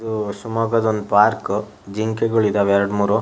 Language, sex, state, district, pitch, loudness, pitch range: Kannada, male, Karnataka, Shimoga, 105 Hz, -19 LUFS, 100-110 Hz